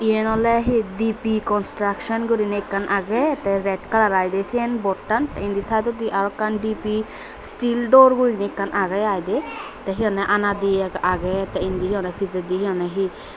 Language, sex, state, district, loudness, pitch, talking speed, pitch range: Chakma, female, Tripura, Dhalai, -21 LUFS, 205 Hz, 185 wpm, 195-225 Hz